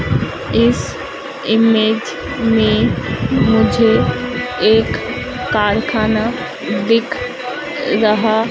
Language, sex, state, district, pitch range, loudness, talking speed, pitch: Hindi, female, Madhya Pradesh, Dhar, 220-230 Hz, -16 LUFS, 55 wpm, 225 Hz